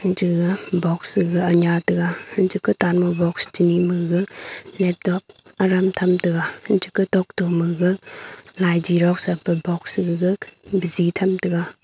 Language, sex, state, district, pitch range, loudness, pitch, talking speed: Wancho, female, Arunachal Pradesh, Longding, 175-190 Hz, -21 LUFS, 180 Hz, 150 wpm